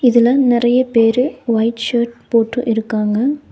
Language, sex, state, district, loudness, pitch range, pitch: Tamil, female, Tamil Nadu, Nilgiris, -15 LUFS, 230-250 Hz, 235 Hz